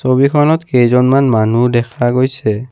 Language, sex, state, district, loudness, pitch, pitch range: Assamese, male, Assam, Kamrup Metropolitan, -12 LUFS, 125 Hz, 120-135 Hz